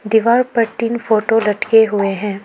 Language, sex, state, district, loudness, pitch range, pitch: Hindi, female, Arunachal Pradesh, Lower Dibang Valley, -15 LUFS, 210-230 Hz, 220 Hz